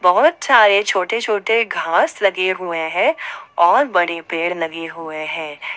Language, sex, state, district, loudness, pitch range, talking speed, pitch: Hindi, female, Jharkhand, Ranchi, -17 LUFS, 165-225 Hz, 145 wpm, 185 Hz